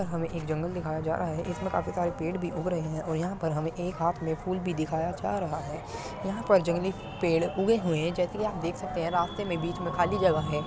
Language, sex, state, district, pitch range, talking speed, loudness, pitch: Hindi, male, Uttar Pradesh, Muzaffarnagar, 160-180 Hz, 280 wpm, -30 LUFS, 170 Hz